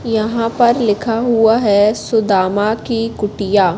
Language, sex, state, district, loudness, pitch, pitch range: Hindi, female, Madhya Pradesh, Katni, -15 LUFS, 220 Hz, 205-230 Hz